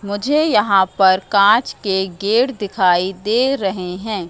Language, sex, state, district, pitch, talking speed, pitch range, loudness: Hindi, female, Madhya Pradesh, Katni, 200 Hz, 140 wpm, 190-220 Hz, -16 LUFS